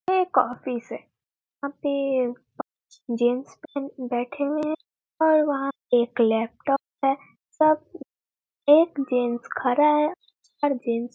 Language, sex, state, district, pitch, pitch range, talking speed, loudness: Hindi, female, Bihar, Muzaffarpur, 275 Hz, 245-305 Hz, 135 wpm, -24 LUFS